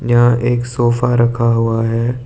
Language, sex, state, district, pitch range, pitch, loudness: Hindi, male, Arunachal Pradesh, Lower Dibang Valley, 115-120 Hz, 120 Hz, -15 LUFS